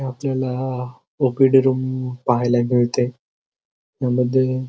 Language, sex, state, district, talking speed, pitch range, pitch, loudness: Marathi, male, Maharashtra, Pune, 75 wpm, 125-130 Hz, 130 Hz, -20 LUFS